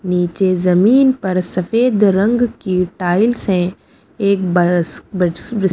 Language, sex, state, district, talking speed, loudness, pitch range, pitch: Hindi, female, Punjab, Pathankot, 125 wpm, -15 LUFS, 180-215 Hz, 185 Hz